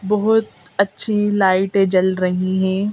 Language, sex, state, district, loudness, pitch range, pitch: Hindi, female, Madhya Pradesh, Bhopal, -18 LUFS, 185-205 Hz, 195 Hz